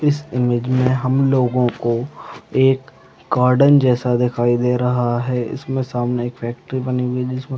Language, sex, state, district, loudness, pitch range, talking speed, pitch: Hindi, male, Chhattisgarh, Raigarh, -18 LUFS, 120-130 Hz, 165 wpm, 125 Hz